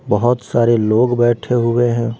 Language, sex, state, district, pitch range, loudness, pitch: Hindi, female, Bihar, West Champaran, 115-120 Hz, -15 LUFS, 120 Hz